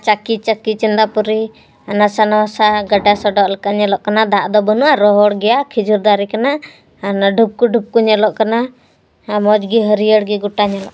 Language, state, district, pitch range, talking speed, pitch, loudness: Santali, Jharkhand, Sahebganj, 205-220 Hz, 170 wpm, 215 Hz, -14 LUFS